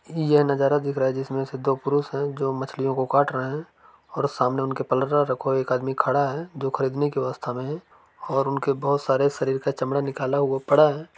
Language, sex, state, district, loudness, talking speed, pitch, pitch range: Hindi, male, Bihar, East Champaran, -24 LUFS, 245 wpm, 135 Hz, 135-145 Hz